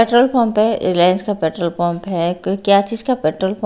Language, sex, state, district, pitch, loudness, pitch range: Hindi, female, Bihar, Patna, 195 Hz, -17 LUFS, 175-220 Hz